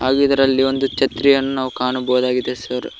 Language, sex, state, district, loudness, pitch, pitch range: Kannada, male, Karnataka, Koppal, -18 LUFS, 130 Hz, 125-135 Hz